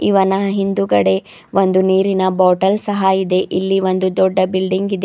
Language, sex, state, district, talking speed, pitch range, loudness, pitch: Kannada, female, Karnataka, Bidar, 140 wpm, 185-195 Hz, -15 LUFS, 190 Hz